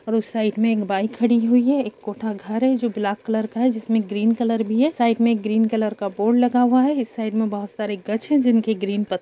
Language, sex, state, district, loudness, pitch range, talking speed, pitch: Hindi, male, Bihar, Gopalganj, -21 LUFS, 210-235 Hz, 280 wpm, 225 Hz